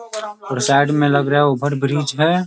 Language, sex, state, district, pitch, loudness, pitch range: Hindi, male, Bihar, Sitamarhi, 145 Hz, -17 LUFS, 140-175 Hz